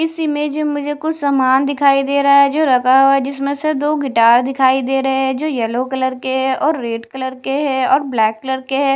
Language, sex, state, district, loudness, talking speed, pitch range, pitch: Hindi, female, Punjab, Kapurthala, -16 LUFS, 245 wpm, 260-290 Hz, 270 Hz